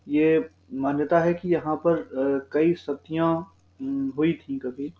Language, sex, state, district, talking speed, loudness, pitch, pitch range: Hindi, male, Uttar Pradesh, Budaun, 145 wpm, -25 LUFS, 160 Hz, 145-170 Hz